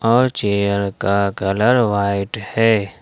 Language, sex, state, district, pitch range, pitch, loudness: Hindi, male, Jharkhand, Ranchi, 100-115 Hz, 100 Hz, -18 LUFS